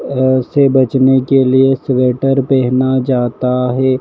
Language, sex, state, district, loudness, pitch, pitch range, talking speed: Hindi, male, Madhya Pradesh, Dhar, -13 LUFS, 130 Hz, 130-135 Hz, 135 wpm